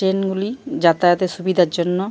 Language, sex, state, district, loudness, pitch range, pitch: Bengali, male, Jharkhand, Jamtara, -18 LUFS, 175-195 Hz, 185 Hz